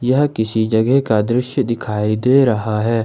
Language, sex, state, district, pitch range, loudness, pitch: Hindi, male, Jharkhand, Ranchi, 110-130 Hz, -16 LUFS, 115 Hz